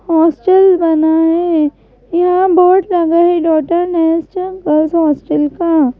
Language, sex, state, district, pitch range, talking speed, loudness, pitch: Hindi, female, Madhya Pradesh, Bhopal, 315-360 Hz, 100 wpm, -12 LUFS, 335 Hz